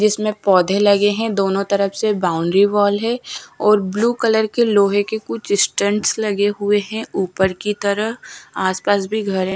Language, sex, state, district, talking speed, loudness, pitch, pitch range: Hindi, female, Odisha, Sambalpur, 180 wpm, -18 LUFS, 205 Hz, 200-215 Hz